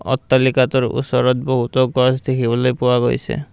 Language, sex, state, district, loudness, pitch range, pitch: Assamese, male, Assam, Kamrup Metropolitan, -17 LUFS, 125-130 Hz, 130 Hz